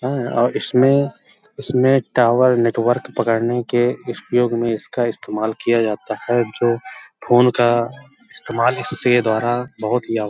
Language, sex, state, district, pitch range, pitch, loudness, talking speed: Hindi, male, Uttar Pradesh, Hamirpur, 115-125 Hz, 120 Hz, -18 LUFS, 145 wpm